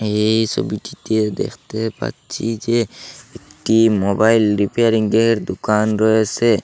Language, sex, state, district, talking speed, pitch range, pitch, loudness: Bengali, male, Assam, Hailakandi, 90 wpm, 105-115 Hz, 110 Hz, -18 LUFS